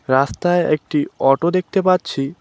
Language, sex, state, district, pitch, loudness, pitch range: Bengali, male, West Bengal, Cooch Behar, 155 Hz, -18 LUFS, 135-175 Hz